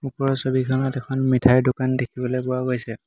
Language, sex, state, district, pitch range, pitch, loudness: Assamese, male, Assam, Hailakandi, 125-130 Hz, 130 Hz, -22 LUFS